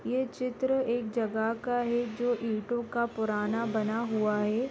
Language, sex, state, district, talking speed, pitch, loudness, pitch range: Hindi, female, Rajasthan, Nagaur, 165 wpm, 235 Hz, -30 LUFS, 220-245 Hz